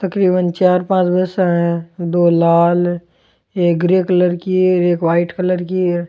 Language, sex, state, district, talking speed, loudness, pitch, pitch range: Rajasthani, male, Rajasthan, Churu, 165 wpm, -15 LUFS, 175 Hz, 170-185 Hz